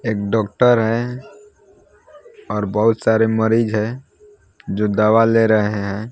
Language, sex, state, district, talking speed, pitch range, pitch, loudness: Hindi, male, Odisha, Nuapada, 125 wpm, 105-120 Hz, 110 Hz, -17 LUFS